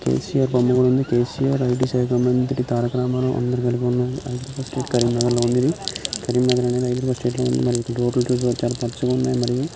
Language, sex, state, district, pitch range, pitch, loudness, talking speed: Telugu, male, Telangana, Karimnagar, 120-125 Hz, 125 Hz, -21 LUFS, 165 wpm